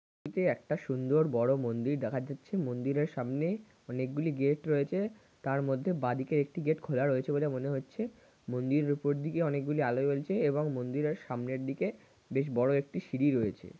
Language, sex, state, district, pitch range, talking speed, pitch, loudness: Bengali, male, West Bengal, North 24 Parganas, 130-155 Hz, 160 wpm, 140 Hz, -32 LUFS